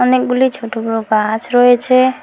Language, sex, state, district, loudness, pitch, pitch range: Bengali, female, West Bengal, Alipurduar, -14 LUFS, 245 Hz, 225-255 Hz